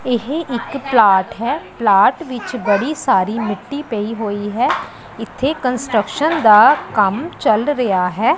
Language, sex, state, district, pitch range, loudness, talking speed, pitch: Punjabi, female, Punjab, Pathankot, 210-265 Hz, -16 LUFS, 135 wpm, 230 Hz